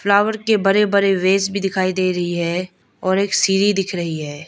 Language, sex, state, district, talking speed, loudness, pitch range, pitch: Hindi, female, Arunachal Pradesh, Lower Dibang Valley, 215 wpm, -18 LUFS, 180-200 Hz, 190 Hz